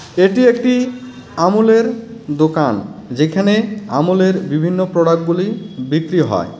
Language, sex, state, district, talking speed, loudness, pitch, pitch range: Bengali, male, West Bengal, Cooch Behar, 100 wpm, -15 LUFS, 185 Hz, 155-220 Hz